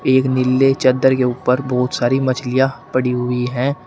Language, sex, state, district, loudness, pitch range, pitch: Hindi, male, Uttar Pradesh, Shamli, -17 LUFS, 125-130 Hz, 130 Hz